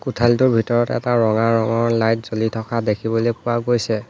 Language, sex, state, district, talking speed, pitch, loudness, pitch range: Assamese, male, Assam, Hailakandi, 160 wpm, 115 Hz, -19 LUFS, 110-120 Hz